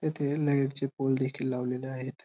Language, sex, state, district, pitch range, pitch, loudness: Marathi, male, Maharashtra, Dhule, 130-140 Hz, 135 Hz, -30 LUFS